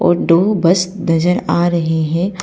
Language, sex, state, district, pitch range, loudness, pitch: Hindi, female, Arunachal Pradesh, Papum Pare, 165-180 Hz, -15 LUFS, 175 Hz